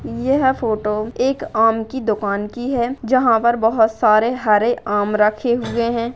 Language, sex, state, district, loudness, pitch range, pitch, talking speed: Hindi, female, Uttarakhand, Uttarkashi, -18 LUFS, 215-245 Hz, 235 Hz, 155 wpm